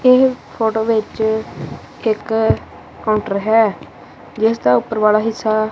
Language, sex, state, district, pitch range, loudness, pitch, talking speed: Punjabi, female, Punjab, Kapurthala, 215-225 Hz, -17 LUFS, 220 Hz, 105 wpm